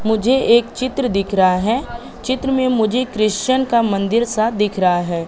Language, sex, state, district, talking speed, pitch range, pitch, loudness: Hindi, female, Madhya Pradesh, Katni, 180 wpm, 205-250 Hz, 230 Hz, -17 LUFS